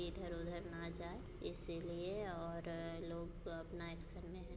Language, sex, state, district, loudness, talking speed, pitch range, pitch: Hindi, female, Bihar, Muzaffarpur, -47 LUFS, 145 wpm, 170-175 Hz, 170 Hz